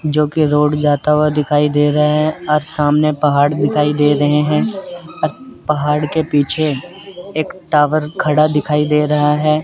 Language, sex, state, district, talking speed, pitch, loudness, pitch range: Hindi, male, Chandigarh, Chandigarh, 155 wpm, 150 Hz, -15 LUFS, 150-155 Hz